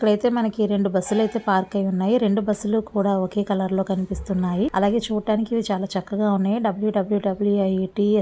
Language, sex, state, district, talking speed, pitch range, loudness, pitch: Telugu, female, Andhra Pradesh, Visakhapatnam, 160 wpm, 195-215 Hz, -22 LUFS, 205 Hz